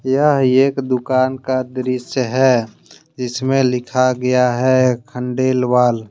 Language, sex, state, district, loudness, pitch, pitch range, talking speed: Hindi, male, Jharkhand, Deoghar, -16 LUFS, 130 Hz, 125-130 Hz, 110 wpm